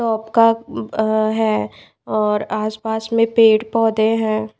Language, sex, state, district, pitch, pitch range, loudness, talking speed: Hindi, female, Odisha, Nuapada, 220 Hz, 215-225 Hz, -18 LUFS, 115 wpm